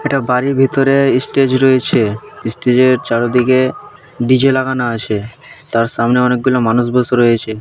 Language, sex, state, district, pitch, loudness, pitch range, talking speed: Bengali, male, West Bengal, Malda, 125 Hz, -13 LUFS, 120-135 Hz, 125 wpm